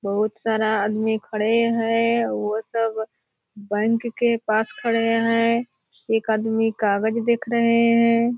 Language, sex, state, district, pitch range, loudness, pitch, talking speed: Hindi, female, Bihar, Purnia, 220-230 Hz, -21 LUFS, 225 Hz, 130 wpm